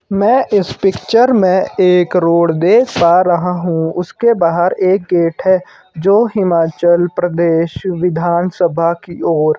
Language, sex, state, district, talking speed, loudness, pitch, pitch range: Hindi, male, Himachal Pradesh, Shimla, 135 wpm, -13 LUFS, 175 Hz, 170-190 Hz